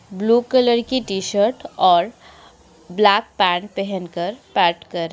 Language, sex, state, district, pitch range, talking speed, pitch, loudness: Hindi, female, Uttar Pradesh, Etah, 180-245 Hz, 115 wpm, 205 Hz, -19 LUFS